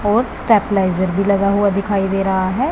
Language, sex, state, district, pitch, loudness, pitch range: Hindi, female, Punjab, Pathankot, 200 Hz, -16 LUFS, 195-205 Hz